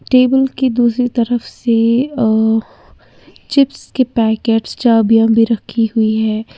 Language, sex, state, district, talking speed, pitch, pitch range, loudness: Hindi, female, Uttar Pradesh, Lalitpur, 130 wpm, 230 Hz, 225-250 Hz, -14 LUFS